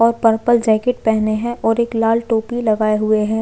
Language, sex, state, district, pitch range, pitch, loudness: Hindi, female, Chhattisgarh, Jashpur, 215-235 Hz, 225 Hz, -17 LUFS